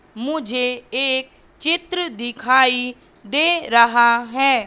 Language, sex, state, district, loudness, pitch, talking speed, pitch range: Hindi, female, Madhya Pradesh, Katni, -18 LUFS, 255 Hz, 90 wpm, 240-290 Hz